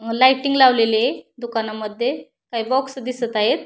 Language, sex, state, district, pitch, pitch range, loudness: Marathi, female, Maharashtra, Pune, 240 Hz, 225-260 Hz, -19 LUFS